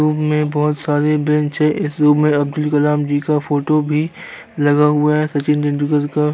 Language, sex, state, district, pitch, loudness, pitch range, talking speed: Hindi, male, Uttar Pradesh, Jyotiba Phule Nagar, 150 Hz, -16 LUFS, 145-150 Hz, 210 wpm